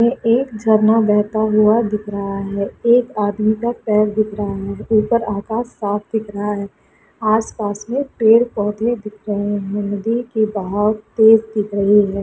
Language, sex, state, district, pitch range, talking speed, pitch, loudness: Hindi, female, Chhattisgarh, Sukma, 205-225 Hz, 160 wpm, 215 Hz, -17 LUFS